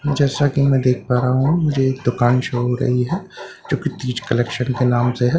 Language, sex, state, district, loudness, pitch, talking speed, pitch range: Hindi, male, Bihar, Katihar, -18 LUFS, 130 Hz, 255 wpm, 125-145 Hz